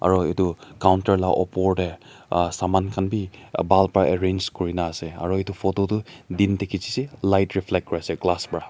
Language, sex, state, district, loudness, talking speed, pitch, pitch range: Nagamese, male, Nagaland, Dimapur, -23 LUFS, 195 wpm, 95 Hz, 90-100 Hz